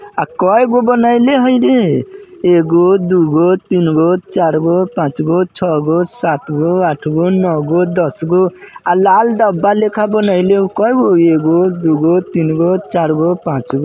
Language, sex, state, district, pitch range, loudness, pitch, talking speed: Bajjika, male, Bihar, Vaishali, 165-195 Hz, -12 LUFS, 180 Hz, 115 wpm